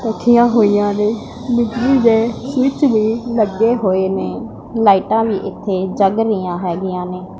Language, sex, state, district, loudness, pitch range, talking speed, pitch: Punjabi, female, Punjab, Pathankot, -16 LUFS, 190-235 Hz, 140 wpm, 220 Hz